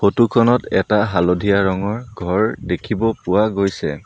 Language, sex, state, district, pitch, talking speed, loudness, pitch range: Assamese, male, Assam, Sonitpur, 100 Hz, 135 wpm, -18 LUFS, 95-115 Hz